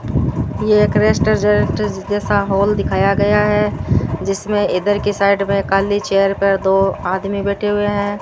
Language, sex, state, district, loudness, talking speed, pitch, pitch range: Hindi, female, Rajasthan, Bikaner, -16 LUFS, 155 wpm, 200 Hz, 195-205 Hz